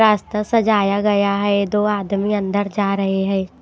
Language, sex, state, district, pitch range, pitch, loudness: Hindi, female, Maharashtra, Washim, 200-210 Hz, 205 Hz, -18 LUFS